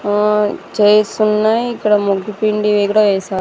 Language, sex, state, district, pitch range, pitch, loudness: Telugu, female, Andhra Pradesh, Sri Satya Sai, 205-215 Hz, 210 Hz, -14 LUFS